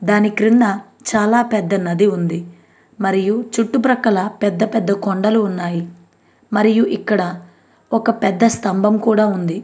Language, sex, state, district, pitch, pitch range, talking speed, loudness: Telugu, female, Andhra Pradesh, Anantapur, 210 Hz, 195-225 Hz, 130 wpm, -17 LUFS